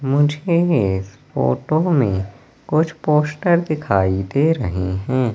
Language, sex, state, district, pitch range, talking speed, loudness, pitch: Hindi, male, Madhya Pradesh, Katni, 95-155 Hz, 110 wpm, -19 LUFS, 140 Hz